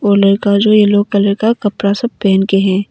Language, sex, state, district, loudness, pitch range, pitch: Hindi, female, Arunachal Pradesh, Papum Pare, -12 LUFS, 200-210 Hz, 200 Hz